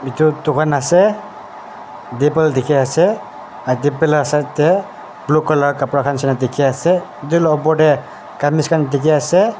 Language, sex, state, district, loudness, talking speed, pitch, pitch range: Nagamese, male, Nagaland, Dimapur, -15 LUFS, 145 wpm, 145 Hz, 130-155 Hz